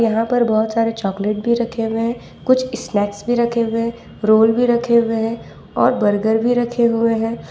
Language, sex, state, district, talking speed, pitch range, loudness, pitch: Hindi, female, Jharkhand, Ranchi, 205 wpm, 220-235 Hz, -18 LUFS, 230 Hz